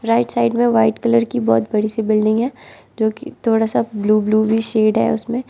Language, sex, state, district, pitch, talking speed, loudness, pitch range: Hindi, female, Arunachal Pradesh, Lower Dibang Valley, 225 Hz, 230 wpm, -17 LUFS, 215-235 Hz